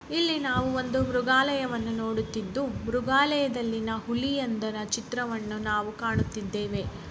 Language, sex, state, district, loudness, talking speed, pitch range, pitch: Kannada, male, Karnataka, Bellary, -28 LUFS, 85 wpm, 220-260 Hz, 235 Hz